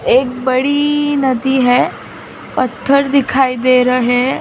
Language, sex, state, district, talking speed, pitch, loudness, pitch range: Hindi, female, Maharashtra, Mumbai Suburban, 120 wpm, 265 Hz, -14 LUFS, 250-280 Hz